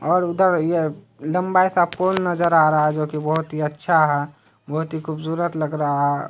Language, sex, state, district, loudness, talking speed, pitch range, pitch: Hindi, male, Bihar, Araria, -20 LUFS, 210 wpm, 150-175 Hz, 160 Hz